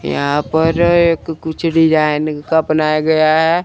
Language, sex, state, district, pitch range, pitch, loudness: Hindi, male, Chandigarh, Chandigarh, 155-165 Hz, 160 Hz, -14 LUFS